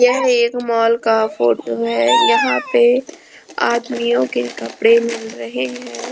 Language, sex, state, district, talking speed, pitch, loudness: Hindi, female, Rajasthan, Jaipur, 135 wpm, 230 Hz, -16 LUFS